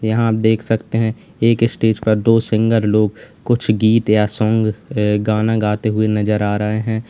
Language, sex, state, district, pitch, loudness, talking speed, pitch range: Hindi, male, Uttar Pradesh, Lalitpur, 110 Hz, -16 LUFS, 175 wpm, 105-115 Hz